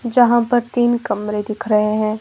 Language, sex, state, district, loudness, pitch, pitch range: Hindi, female, Himachal Pradesh, Shimla, -17 LUFS, 230 Hz, 215-240 Hz